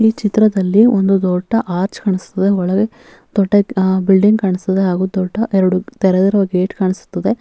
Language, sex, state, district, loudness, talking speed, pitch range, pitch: Kannada, female, Karnataka, Bellary, -15 LUFS, 130 wpm, 185-215 Hz, 195 Hz